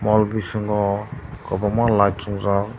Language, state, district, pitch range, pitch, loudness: Kokborok, Tripura, Dhalai, 100-110 Hz, 105 Hz, -21 LUFS